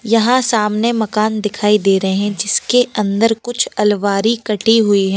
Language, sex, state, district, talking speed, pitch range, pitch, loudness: Hindi, female, Uttar Pradesh, Lalitpur, 160 wpm, 205-225 Hz, 210 Hz, -15 LUFS